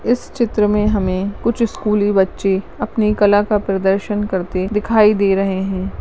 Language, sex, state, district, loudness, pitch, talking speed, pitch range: Hindi, female, Goa, North and South Goa, -17 LUFS, 205 Hz, 150 wpm, 195-210 Hz